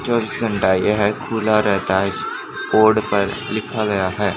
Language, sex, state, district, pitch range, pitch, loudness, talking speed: Hindi, male, Haryana, Charkhi Dadri, 100-110 Hz, 105 Hz, -19 LUFS, 150 wpm